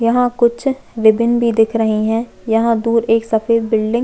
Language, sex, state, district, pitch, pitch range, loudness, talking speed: Hindi, female, Chhattisgarh, Jashpur, 230 Hz, 225-235 Hz, -15 LUFS, 195 wpm